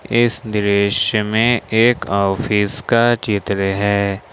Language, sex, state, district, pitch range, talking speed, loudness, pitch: Hindi, male, Jharkhand, Ranchi, 100-115 Hz, 110 wpm, -17 LUFS, 105 Hz